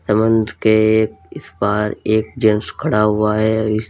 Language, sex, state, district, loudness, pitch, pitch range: Hindi, male, Uttar Pradesh, Lalitpur, -16 LUFS, 110 Hz, 105-110 Hz